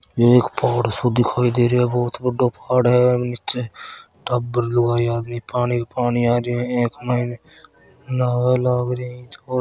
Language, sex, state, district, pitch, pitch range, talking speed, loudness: Marwari, male, Rajasthan, Churu, 120 Hz, 120-125 Hz, 175 wpm, -20 LUFS